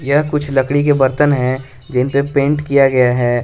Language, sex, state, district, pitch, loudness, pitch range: Hindi, male, Jharkhand, Garhwa, 135 Hz, -15 LUFS, 130-145 Hz